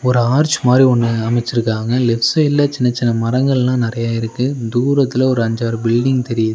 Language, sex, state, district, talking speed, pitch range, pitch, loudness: Tamil, male, Tamil Nadu, Nilgiris, 155 wpm, 115-130 Hz, 120 Hz, -15 LUFS